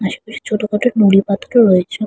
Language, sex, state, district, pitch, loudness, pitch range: Bengali, female, West Bengal, Purulia, 210 Hz, -14 LUFS, 195-220 Hz